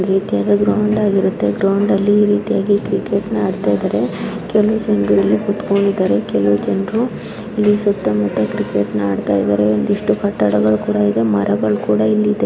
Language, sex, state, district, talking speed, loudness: Kannada, female, Karnataka, Belgaum, 80 wpm, -16 LUFS